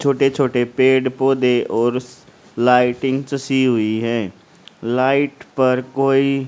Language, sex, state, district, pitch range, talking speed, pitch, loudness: Hindi, male, Haryana, Rohtak, 125-135 Hz, 110 wpm, 130 Hz, -18 LUFS